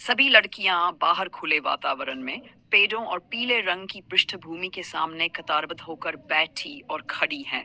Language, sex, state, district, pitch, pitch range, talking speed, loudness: Hindi, female, Uttar Pradesh, Lalitpur, 185 Hz, 165-225 Hz, 165 wpm, -24 LUFS